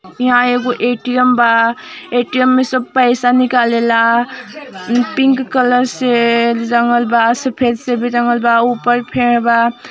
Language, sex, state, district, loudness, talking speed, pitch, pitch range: Hindi, female, Uttar Pradesh, Ghazipur, -13 LUFS, 60 wpm, 245 Hz, 235-250 Hz